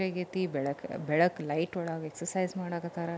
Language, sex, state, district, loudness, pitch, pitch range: Kannada, female, Karnataka, Belgaum, -32 LUFS, 170 Hz, 160-180 Hz